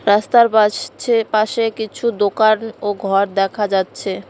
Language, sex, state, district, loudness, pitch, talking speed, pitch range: Bengali, female, West Bengal, Cooch Behar, -17 LUFS, 215 Hz, 125 wpm, 200-225 Hz